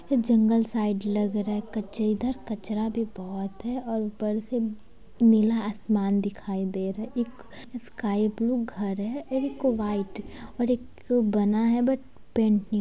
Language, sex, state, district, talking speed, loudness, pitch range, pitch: Hindi, female, Bihar, Sitamarhi, 160 wpm, -27 LUFS, 210-240 Hz, 220 Hz